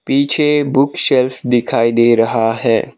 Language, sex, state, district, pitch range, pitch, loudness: Hindi, male, Sikkim, Gangtok, 115-140 Hz, 125 Hz, -14 LUFS